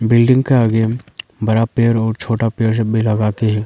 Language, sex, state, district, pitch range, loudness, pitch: Hindi, male, Arunachal Pradesh, Lower Dibang Valley, 110-115 Hz, -15 LUFS, 115 Hz